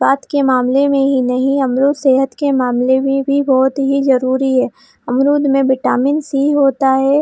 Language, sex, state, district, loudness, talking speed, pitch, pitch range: Hindi, female, Jharkhand, Jamtara, -14 LUFS, 175 wpm, 270 Hz, 260-275 Hz